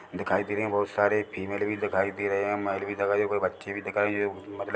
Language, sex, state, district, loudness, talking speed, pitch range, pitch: Hindi, male, Chhattisgarh, Bilaspur, -28 LUFS, 290 wpm, 100-105 Hz, 100 Hz